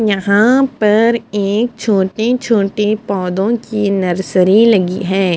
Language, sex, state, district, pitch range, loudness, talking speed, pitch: Hindi, female, Punjab, Fazilka, 190-225 Hz, -14 LUFS, 125 wpm, 210 Hz